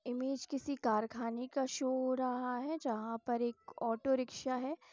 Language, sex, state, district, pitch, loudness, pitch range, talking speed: Hindi, female, Bihar, Sitamarhi, 255 Hz, -37 LUFS, 235-270 Hz, 170 wpm